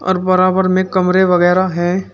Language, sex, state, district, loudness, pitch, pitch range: Hindi, male, Uttar Pradesh, Shamli, -13 LUFS, 185 Hz, 180-185 Hz